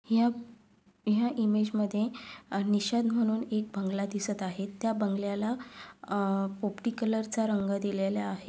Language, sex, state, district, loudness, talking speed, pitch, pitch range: Marathi, female, Maharashtra, Sindhudurg, -31 LUFS, 125 wpm, 215 Hz, 200-230 Hz